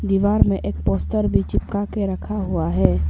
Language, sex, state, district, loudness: Hindi, female, Arunachal Pradesh, Papum Pare, -21 LUFS